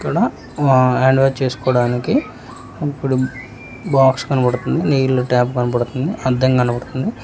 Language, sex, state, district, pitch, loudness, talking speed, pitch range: Telugu, male, Telangana, Hyderabad, 130 Hz, -17 LUFS, 110 wpm, 125-135 Hz